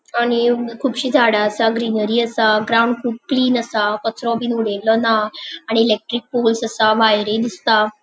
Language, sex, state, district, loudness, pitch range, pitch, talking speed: Konkani, female, Goa, North and South Goa, -17 LUFS, 215-235 Hz, 230 Hz, 150 wpm